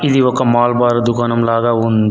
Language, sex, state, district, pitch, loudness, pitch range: Telugu, male, Telangana, Adilabad, 120 Hz, -14 LUFS, 115-120 Hz